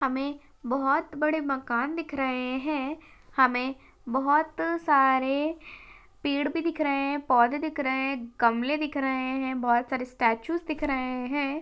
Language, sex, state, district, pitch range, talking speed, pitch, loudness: Hindi, female, Maharashtra, Dhule, 260-300 Hz, 150 wpm, 275 Hz, -27 LUFS